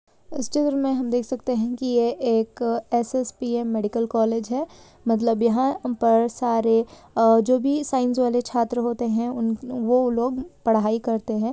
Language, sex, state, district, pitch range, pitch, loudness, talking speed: Hindi, female, Maharashtra, Sindhudurg, 230-255 Hz, 240 Hz, -23 LUFS, 165 wpm